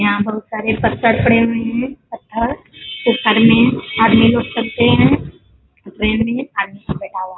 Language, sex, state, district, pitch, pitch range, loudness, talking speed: Hindi, female, Bihar, Bhagalpur, 230 Hz, 215-235 Hz, -15 LUFS, 180 wpm